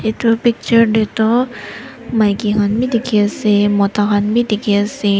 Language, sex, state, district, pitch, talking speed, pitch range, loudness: Nagamese, female, Nagaland, Dimapur, 220 Hz, 140 wpm, 205-235 Hz, -15 LUFS